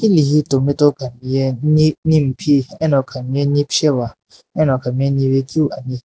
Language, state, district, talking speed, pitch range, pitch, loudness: Sumi, Nagaland, Dimapur, 130 wpm, 130-150 Hz, 140 Hz, -16 LUFS